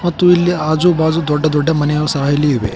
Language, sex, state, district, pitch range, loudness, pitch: Kannada, male, Karnataka, Koppal, 150-175 Hz, -14 LUFS, 155 Hz